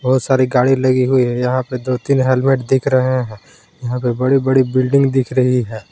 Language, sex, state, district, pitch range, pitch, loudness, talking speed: Hindi, male, Jharkhand, Palamu, 125-130 Hz, 130 Hz, -15 LUFS, 225 wpm